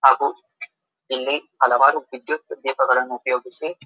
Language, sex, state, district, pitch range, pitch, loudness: Kannada, male, Karnataka, Dharwad, 125-180 Hz, 130 Hz, -21 LUFS